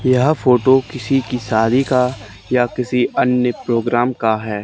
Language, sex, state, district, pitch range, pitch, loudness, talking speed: Hindi, male, Haryana, Charkhi Dadri, 115-130 Hz, 125 Hz, -17 LUFS, 155 wpm